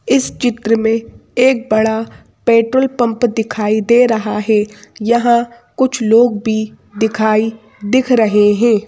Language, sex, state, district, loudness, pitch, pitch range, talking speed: Hindi, female, Madhya Pradesh, Bhopal, -14 LUFS, 225 Hz, 215-240 Hz, 130 wpm